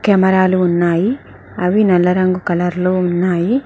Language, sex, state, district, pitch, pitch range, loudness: Telugu, female, Telangana, Mahabubabad, 185 Hz, 180-190 Hz, -15 LUFS